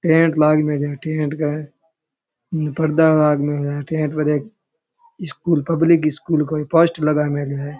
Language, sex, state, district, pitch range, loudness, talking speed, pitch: Rajasthani, male, Rajasthan, Churu, 150-160 Hz, -18 LUFS, 130 wpm, 155 Hz